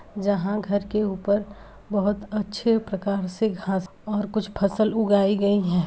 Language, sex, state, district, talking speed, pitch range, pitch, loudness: Hindi, male, Bihar, Saharsa, 155 wpm, 195-210 Hz, 205 Hz, -24 LUFS